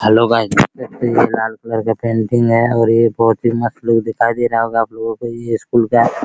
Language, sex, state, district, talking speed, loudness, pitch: Hindi, male, Bihar, Araria, 270 wpm, -15 LUFS, 115 Hz